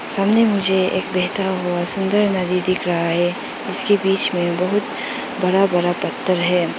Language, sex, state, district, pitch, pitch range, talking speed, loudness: Hindi, female, Arunachal Pradesh, Lower Dibang Valley, 185 Hz, 180-195 Hz, 160 wpm, -17 LUFS